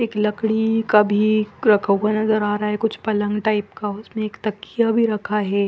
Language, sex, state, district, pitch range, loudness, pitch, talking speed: Hindi, female, Punjab, Fazilka, 210-220 Hz, -20 LUFS, 215 Hz, 210 wpm